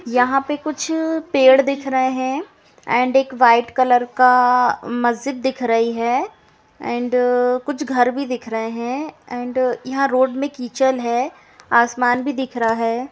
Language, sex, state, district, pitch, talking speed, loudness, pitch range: Hindi, female, Bihar, Gopalganj, 255 Hz, 150 wpm, -18 LUFS, 245-270 Hz